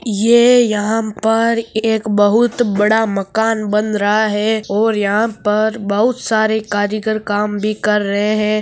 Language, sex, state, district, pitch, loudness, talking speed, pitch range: Marwari, female, Rajasthan, Nagaur, 215 Hz, -15 LUFS, 145 wpm, 210-225 Hz